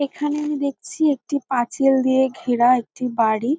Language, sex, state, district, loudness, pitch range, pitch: Bengali, female, West Bengal, North 24 Parganas, -20 LUFS, 245-290 Hz, 265 Hz